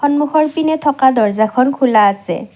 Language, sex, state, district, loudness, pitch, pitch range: Assamese, female, Assam, Kamrup Metropolitan, -14 LUFS, 265 Hz, 220-295 Hz